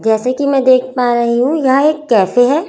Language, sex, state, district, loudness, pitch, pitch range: Hindi, female, Chhattisgarh, Raipur, -13 LUFS, 255 Hz, 240-280 Hz